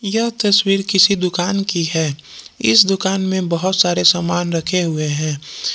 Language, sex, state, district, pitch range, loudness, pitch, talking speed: Hindi, male, Jharkhand, Palamu, 165-195 Hz, -16 LUFS, 180 Hz, 155 wpm